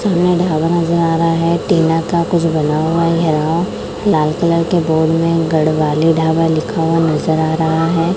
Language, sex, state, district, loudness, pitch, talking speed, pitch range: Hindi, male, Chhattisgarh, Raipur, -14 LUFS, 165 Hz, 175 wpm, 160-170 Hz